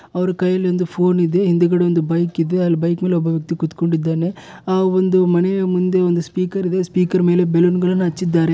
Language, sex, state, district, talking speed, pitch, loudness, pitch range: Kannada, male, Karnataka, Bellary, 180 wpm, 180 Hz, -17 LUFS, 170-185 Hz